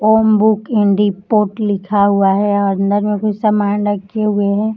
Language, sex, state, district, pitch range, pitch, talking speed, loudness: Hindi, female, Uttar Pradesh, Gorakhpur, 200-215 Hz, 205 Hz, 165 wpm, -15 LUFS